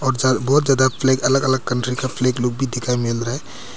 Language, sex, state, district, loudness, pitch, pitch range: Hindi, male, Arunachal Pradesh, Papum Pare, -19 LUFS, 130 Hz, 125-130 Hz